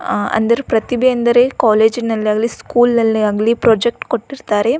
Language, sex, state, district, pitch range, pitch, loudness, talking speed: Kannada, female, Karnataka, Belgaum, 220-245 Hz, 235 Hz, -15 LUFS, 125 wpm